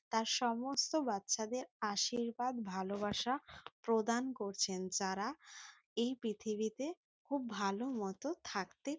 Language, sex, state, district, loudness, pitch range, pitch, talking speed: Bengali, female, West Bengal, Jalpaiguri, -38 LUFS, 205-265 Hz, 235 Hz, 95 wpm